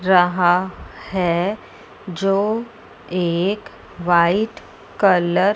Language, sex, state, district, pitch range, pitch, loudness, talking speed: Hindi, female, Chandigarh, Chandigarh, 175-200 Hz, 185 Hz, -19 LUFS, 75 wpm